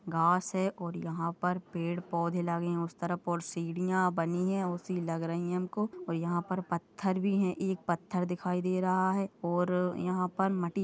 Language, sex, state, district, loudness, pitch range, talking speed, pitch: Hindi, female, Goa, North and South Goa, -32 LUFS, 170-185 Hz, 205 wpm, 180 Hz